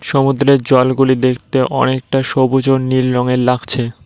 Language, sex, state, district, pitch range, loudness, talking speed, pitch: Bengali, male, West Bengal, Cooch Behar, 125-135 Hz, -14 LUFS, 135 wpm, 130 Hz